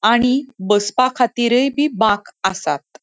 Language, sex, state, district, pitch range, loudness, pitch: Konkani, female, Goa, North and South Goa, 205-255 Hz, -17 LUFS, 235 Hz